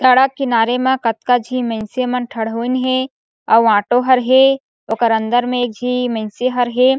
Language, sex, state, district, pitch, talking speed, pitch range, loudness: Chhattisgarhi, female, Chhattisgarh, Sarguja, 245 Hz, 190 wpm, 230-255 Hz, -16 LUFS